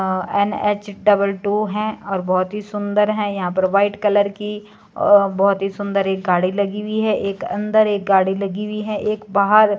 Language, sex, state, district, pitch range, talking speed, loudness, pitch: Hindi, female, Himachal Pradesh, Shimla, 195-210 Hz, 200 wpm, -19 LUFS, 205 Hz